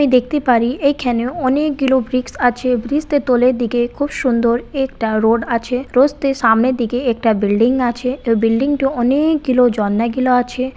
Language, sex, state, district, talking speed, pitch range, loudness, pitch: Bengali, female, West Bengal, Purulia, 150 wpm, 235-270 Hz, -16 LUFS, 250 Hz